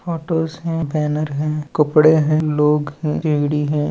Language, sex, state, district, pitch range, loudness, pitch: Hindi, male, Uttar Pradesh, Deoria, 150-160 Hz, -18 LUFS, 150 Hz